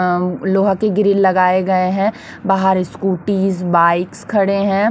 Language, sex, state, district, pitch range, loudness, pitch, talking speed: Hindi, female, Chhattisgarh, Raipur, 185-200 Hz, -16 LUFS, 190 Hz, 145 wpm